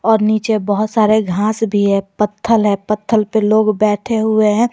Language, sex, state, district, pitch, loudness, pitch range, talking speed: Hindi, female, Jharkhand, Garhwa, 215 Hz, -15 LUFS, 210-220 Hz, 180 wpm